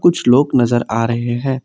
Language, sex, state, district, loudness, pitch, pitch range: Hindi, male, Assam, Kamrup Metropolitan, -15 LUFS, 120 Hz, 120-135 Hz